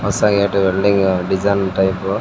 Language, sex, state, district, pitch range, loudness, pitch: Kannada, male, Karnataka, Raichur, 95-100 Hz, -16 LUFS, 95 Hz